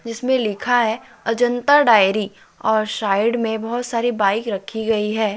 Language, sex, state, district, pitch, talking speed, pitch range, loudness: Hindi, male, Jharkhand, Deoghar, 225 Hz, 155 wpm, 215-240 Hz, -19 LUFS